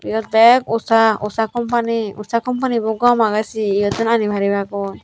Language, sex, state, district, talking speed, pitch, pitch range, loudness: Chakma, female, Tripura, Unakoti, 155 wpm, 225 Hz, 210-230 Hz, -17 LUFS